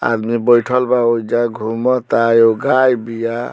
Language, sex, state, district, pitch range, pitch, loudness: Bhojpuri, male, Bihar, Muzaffarpur, 115-125 Hz, 115 Hz, -15 LUFS